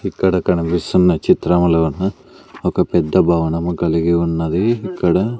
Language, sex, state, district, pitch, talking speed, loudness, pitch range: Telugu, male, Andhra Pradesh, Sri Satya Sai, 85 Hz, 100 wpm, -17 LUFS, 85-95 Hz